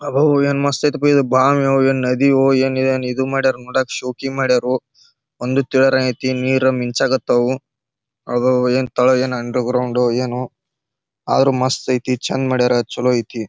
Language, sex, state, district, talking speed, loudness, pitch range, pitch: Kannada, male, Karnataka, Bijapur, 150 wpm, -17 LUFS, 125-135 Hz, 130 Hz